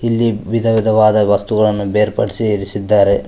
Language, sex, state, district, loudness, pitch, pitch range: Kannada, male, Karnataka, Koppal, -14 LUFS, 105 Hz, 100-110 Hz